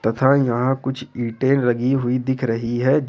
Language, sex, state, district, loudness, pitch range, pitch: Hindi, male, Jharkhand, Ranchi, -20 LUFS, 120-135 Hz, 130 Hz